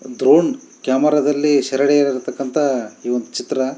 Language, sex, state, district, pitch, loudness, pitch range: Kannada, male, Karnataka, Shimoga, 135 Hz, -17 LUFS, 130-145 Hz